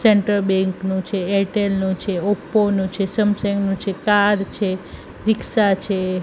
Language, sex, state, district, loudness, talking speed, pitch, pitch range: Gujarati, female, Gujarat, Gandhinagar, -20 LUFS, 165 wpm, 195 Hz, 190-205 Hz